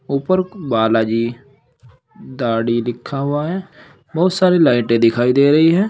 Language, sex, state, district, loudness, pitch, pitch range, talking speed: Hindi, male, Uttar Pradesh, Saharanpur, -16 LUFS, 135 Hz, 120-165 Hz, 130 wpm